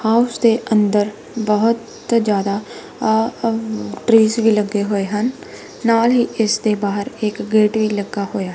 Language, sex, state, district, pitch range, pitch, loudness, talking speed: Punjabi, female, Punjab, Kapurthala, 205-230 Hz, 220 Hz, -18 LUFS, 140 wpm